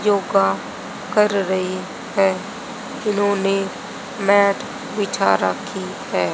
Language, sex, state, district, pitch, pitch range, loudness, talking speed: Hindi, female, Haryana, Jhajjar, 200 Hz, 190-210 Hz, -20 LUFS, 85 wpm